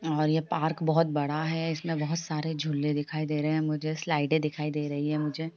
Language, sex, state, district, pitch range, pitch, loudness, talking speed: Hindi, female, Jharkhand, Sahebganj, 150-160 Hz, 155 Hz, -29 LUFS, 235 wpm